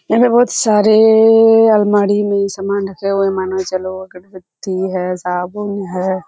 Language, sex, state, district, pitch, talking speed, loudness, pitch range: Hindi, female, Bihar, Kishanganj, 195 Hz, 155 wpm, -14 LUFS, 185-210 Hz